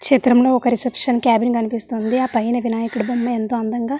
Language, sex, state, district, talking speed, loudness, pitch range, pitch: Telugu, female, Andhra Pradesh, Visakhapatnam, 210 wpm, -18 LUFS, 230-250 Hz, 240 Hz